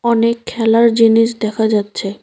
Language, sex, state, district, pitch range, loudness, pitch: Bengali, female, West Bengal, Cooch Behar, 220-230 Hz, -14 LUFS, 225 Hz